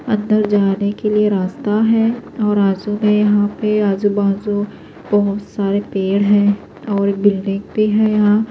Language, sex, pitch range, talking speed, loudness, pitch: Urdu, female, 200-210 Hz, 150 wpm, -16 LUFS, 205 Hz